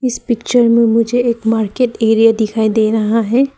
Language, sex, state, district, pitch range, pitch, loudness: Hindi, female, Arunachal Pradesh, Papum Pare, 220-240 Hz, 230 Hz, -13 LUFS